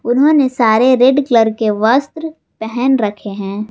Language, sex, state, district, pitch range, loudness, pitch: Hindi, female, Jharkhand, Garhwa, 220-270 Hz, -13 LUFS, 240 Hz